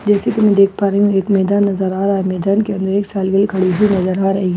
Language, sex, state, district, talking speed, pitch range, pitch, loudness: Hindi, female, Bihar, Katihar, 325 wpm, 190-205 Hz, 195 Hz, -15 LUFS